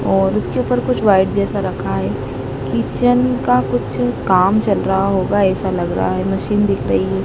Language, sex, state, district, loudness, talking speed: Hindi, female, Madhya Pradesh, Dhar, -17 LUFS, 205 wpm